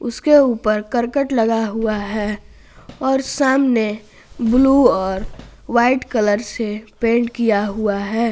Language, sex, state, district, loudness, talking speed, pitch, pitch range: Hindi, female, Jharkhand, Garhwa, -18 LUFS, 125 wpm, 225 Hz, 210-255 Hz